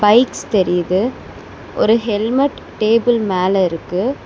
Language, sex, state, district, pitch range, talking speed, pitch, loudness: Tamil, female, Tamil Nadu, Chennai, 185-235 Hz, 100 wpm, 215 Hz, -16 LUFS